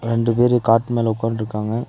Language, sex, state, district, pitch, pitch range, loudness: Tamil, male, Tamil Nadu, Nilgiris, 115 Hz, 110-120 Hz, -19 LUFS